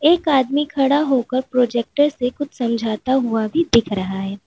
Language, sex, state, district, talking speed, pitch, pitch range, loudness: Hindi, female, Uttar Pradesh, Lalitpur, 175 wpm, 255 Hz, 230-290 Hz, -19 LUFS